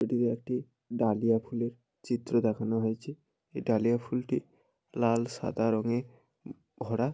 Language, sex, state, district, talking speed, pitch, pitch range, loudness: Bengali, male, West Bengal, Jalpaiguri, 115 wpm, 120 Hz, 115-125 Hz, -31 LUFS